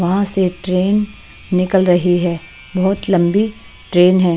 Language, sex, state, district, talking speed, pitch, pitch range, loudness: Hindi, female, Himachal Pradesh, Shimla, 135 wpm, 185 Hz, 180-195 Hz, -16 LUFS